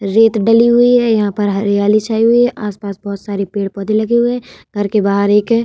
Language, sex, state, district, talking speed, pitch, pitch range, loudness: Hindi, female, Bihar, Vaishali, 235 wpm, 215 Hz, 200-230 Hz, -14 LUFS